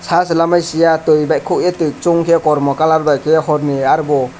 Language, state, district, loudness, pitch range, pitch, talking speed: Kokborok, Tripura, West Tripura, -14 LUFS, 150-165 Hz, 160 Hz, 205 wpm